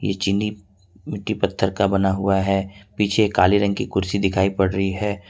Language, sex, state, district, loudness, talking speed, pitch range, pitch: Hindi, male, Jharkhand, Ranchi, -21 LUFS, 195 wpm, 95-100 Hz, 100 Hz